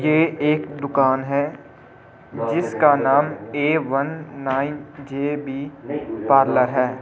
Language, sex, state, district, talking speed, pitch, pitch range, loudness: Hindi, male, Delhi, New Delhi, 105 wpm, 140 Hz, 135-150 Hz, -21 LUFS